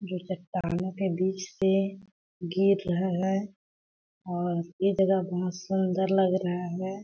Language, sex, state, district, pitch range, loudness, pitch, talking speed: Hindi, female, Chhattisgarh, Balrampur, 180-195 Hz, -28 LUFS, 190 Hz, 145 wpm